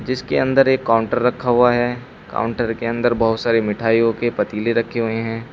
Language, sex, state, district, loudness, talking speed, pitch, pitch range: Hindi, male, Uttar Pradesh, Saharanpur, -18 LUFS, 195 wpm, 115 Hz, 115-125 Hz